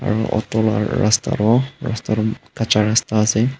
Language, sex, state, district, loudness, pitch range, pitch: Nagamese, male, Nagaland, Dimapur, -18 LUFS, 110-115 Hz, 110 Hz